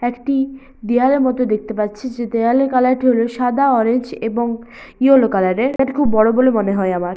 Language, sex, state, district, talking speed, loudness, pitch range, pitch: Bengali, female, West Bengal, Purulia, 185 wpm, -16 LUFS, 225-260 Hz, 245 Hz